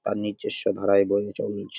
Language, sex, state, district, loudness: Bengali, male, West Bengal, Jalpaiguri, -25 LUFS